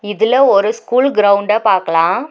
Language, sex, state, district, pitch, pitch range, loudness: Tamil, female, Tamil Nadu, Nilgiris, 215 Hz, 200-245 Hz, -13 LUFS